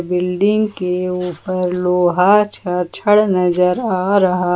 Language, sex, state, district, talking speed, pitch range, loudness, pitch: Hindi, female, Jharkhand, Ranchi, 120 wpm, 180-200 Hz, -16 LUFS, 180 Hz